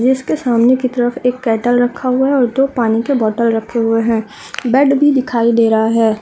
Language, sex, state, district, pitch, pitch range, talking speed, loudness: Hindi, female, Uttarakhand, Tehri Garhwal, 245 Hz, 230-260 Hz, 220 wpm, -14 LUFS